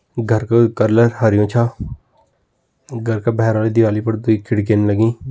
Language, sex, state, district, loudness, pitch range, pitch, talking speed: Kumaoni, male, Uttarakhand, Tehri Garhwal, -16 LUFS, 110-115 Hz, 115 Hz, 160 wpm